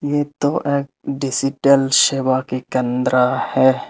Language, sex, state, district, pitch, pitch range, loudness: Hindi, male, Tripura, Unakoti, 135 Hz, 130-140 Hz, -18 LUFS